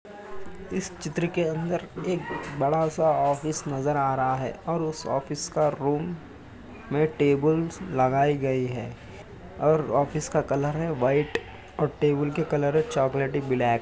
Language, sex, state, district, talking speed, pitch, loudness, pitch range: Hindi, male, Uttar Pradesh, Hamirpur, 150 wpm, 150 Hz, -26 LUFS, 135-165 Hz